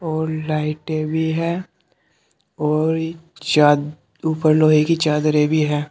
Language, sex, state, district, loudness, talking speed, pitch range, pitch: Hindi, male, Uttar Pradesh, Saharanpur, -19 LUFS, 120 wpm, 150-160 Hz, 155 Hz